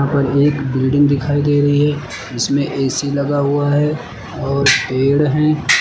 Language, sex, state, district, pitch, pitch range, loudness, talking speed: Hindi, male, Uttar Pradesh, Lucknow, 140 Hz, 135-145 Hz, -16 LUFS, 165 wpm